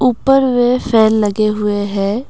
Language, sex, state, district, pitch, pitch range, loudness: Hindi, female, Assam, Kamrup Metropolitan, 220 Hz, 210-250 Hz, -14 LUFS